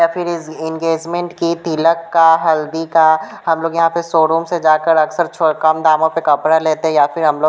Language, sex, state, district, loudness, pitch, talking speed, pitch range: Hindi, female, Bihar, Patna, -15 LUFS, 160 Hz, 230 wpm, 155-165 Hz